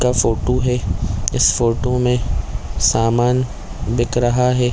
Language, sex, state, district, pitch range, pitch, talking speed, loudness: Hindi, male, Chhattisgarh, Korba, 115-125 Hz, 120 Hz, 140 wpm, -18 LUFS